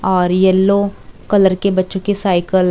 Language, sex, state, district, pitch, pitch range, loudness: Hindi, female, Chhattisgarh, Raipur, 190 Hz, 185-195 Hz, -15 LUFS